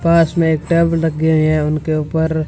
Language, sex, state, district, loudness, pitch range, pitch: Hindi, female, Rajasthan, Bikaner, -15 LUFS, 155-165 Hz, 160 Hz